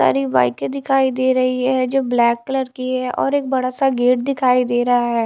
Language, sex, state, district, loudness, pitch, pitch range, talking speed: Hindi, female, Haryana, Charkhi Dadri, -18 LUFS, 255 Hz, 240-265 Hz, 215 wpm